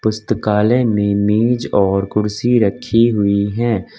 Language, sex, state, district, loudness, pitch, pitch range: Hindi, male, Uttar Pradesh, Lucknow, -16 LUFS, 105 Hz, 100-120 Hz